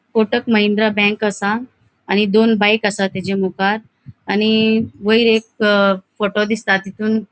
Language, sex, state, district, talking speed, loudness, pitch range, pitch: Konkani, female, Goa, North and South Goa, 140 wpm, -16 LUFS, 200-220 Hz, 210 Hz